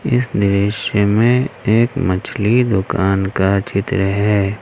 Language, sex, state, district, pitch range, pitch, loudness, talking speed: Hindi, male, Jharkhand, Ranchi, 95-115 Hz, 100 Hz, -16 LUFS, 115 wpm